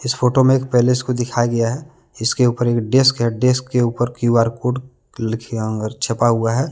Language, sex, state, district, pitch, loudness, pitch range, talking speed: Hindi, male, Jharkhand, Deoghar, 120 Hz, -18 LUFS, 115-125 Hz, 215 wpm